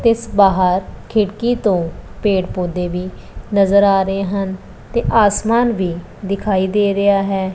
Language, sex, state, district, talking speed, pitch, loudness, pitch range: Punjabi, female, Punjab, Pathankot, 150 wpm, 195 Hz, -17 LUFS, 190-210 Hz